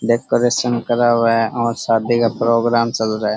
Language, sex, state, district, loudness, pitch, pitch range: Rajasthani, male, Rajasthan, Churu, -17 LUFS, 115 Hz, 115-120 Hz